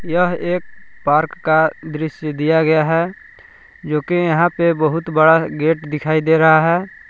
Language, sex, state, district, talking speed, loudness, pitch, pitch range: Hindi, male, Jharkhand, Palamu, 160 wpm, -16 LUFS, 160 Hz, 155-175 Hz